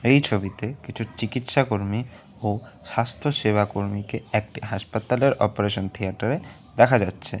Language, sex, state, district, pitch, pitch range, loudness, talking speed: Bengali, male, West Bengal, Alipurduar, 110 Hz, 105-130 Hz, -24 LUFS, 120 wpm